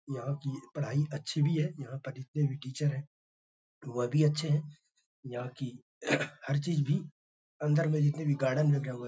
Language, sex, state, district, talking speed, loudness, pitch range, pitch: Hindi, male, Bihar, Bhagalpur, 190 wpm, -32 LUFS, 135-150 Hz, 145 Hz